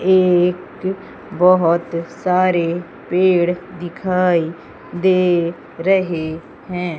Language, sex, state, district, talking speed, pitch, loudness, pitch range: Hindi, female, Madhya Pradesh, Umaria, 70 wpm, 180 Hz, -17 LUFS, 170-185 Hz